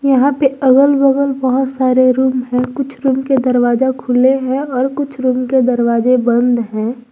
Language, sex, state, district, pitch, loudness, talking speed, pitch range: Hindi, female, Jharkhand, Garhwa, 260 Hz, -14 LUFS, 175 wpm, 250-270 Hz